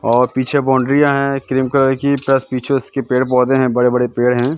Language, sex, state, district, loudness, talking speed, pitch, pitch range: Hindi, male, Madhya Pradesh, Katni, -15 LUFS, 220 wpm, 130 Hz, 125-135 Hz